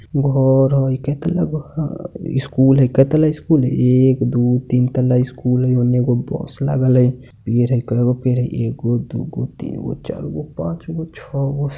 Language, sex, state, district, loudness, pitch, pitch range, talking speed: Hindi, male, Bihar, Muzaffarpur, -18 LUFS, 130 Hz, 125-145 Hz, 170 wpm